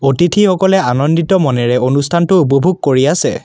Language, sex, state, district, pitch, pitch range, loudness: Assamese, male, Assam, Kamrup Metropolitan, 165 Hz, 135-185 Hz, -12 LUFS